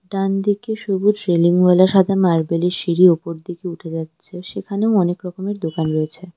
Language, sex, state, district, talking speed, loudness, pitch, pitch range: Bengali, female, West Bengal, Darjeeling, 140 wpm, -18 LUFS, 180 Hz, 170-195 Hz